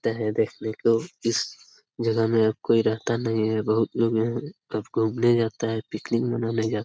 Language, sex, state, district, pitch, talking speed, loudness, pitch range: Hindi, male, Bihar, Jamui, 115 Hz, 165 wpm, -25 LUFS, 110-115 Hz